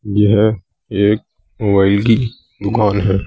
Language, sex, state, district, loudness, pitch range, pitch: Hindi, male, Uttar Pradesh, Saharanpur, -15 LUFS, 100-110 Hz, 105 Hz